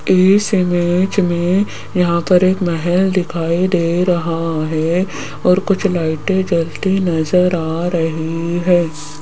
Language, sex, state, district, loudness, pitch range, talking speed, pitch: Hindi, female, Rajasthan, Jaipur, -16 LUFS, 165-185 Hz, 125 wpm, 175 Hz